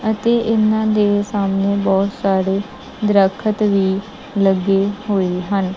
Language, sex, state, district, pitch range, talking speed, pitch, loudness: Punjabi, male, Punjab, Kapurthala, 195-215 Hz, 115 wpm, 200 Hz, -17 LUFS